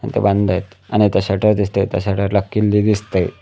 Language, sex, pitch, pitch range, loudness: Marathi, male, 100 Hz, 95-105 Hz, -17 LUFS